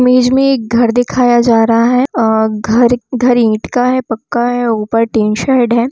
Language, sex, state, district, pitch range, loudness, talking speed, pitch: Hindi, female, Bihar, Purnia, 225-250 Hz, -12 LUFS, 195 wpm, 240 Hz